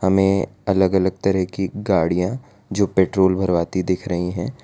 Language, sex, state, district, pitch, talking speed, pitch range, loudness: Hindi, male, Gujarat, Valsad, 95 Hz, 155 wpm, 90-95 Hz, -20 LUFS